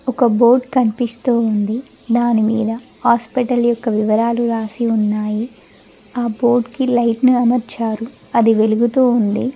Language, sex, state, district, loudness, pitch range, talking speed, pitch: Telugu, female, Telangana, Mahabubabad, -16 LUFS, 225-245 Hz, 125 wpm, 235 Hz